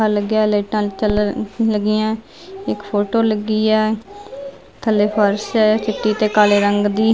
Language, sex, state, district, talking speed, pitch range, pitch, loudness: Punjabi, female, Punjab, Fazilka, 150 wpm, 210-220 Hz, 215 Hz, -17 LUFS